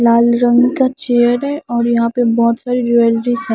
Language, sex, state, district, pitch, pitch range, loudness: Hindi, female, Himachal Pradesh, Shimla, 240 Hz, 235-245 Hz, -14 LUFS